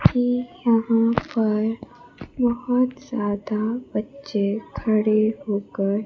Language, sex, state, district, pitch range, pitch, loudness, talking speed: Hindi, female, Bihar, Kaimur, 210-245 Hz, 225 Hz, -23 LUFS, 80 wpm